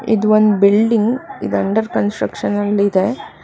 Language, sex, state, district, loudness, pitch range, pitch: Kannada, female, Karnataka, Bangalore, -16 LUFS, 200-220 Hz, 210 Hz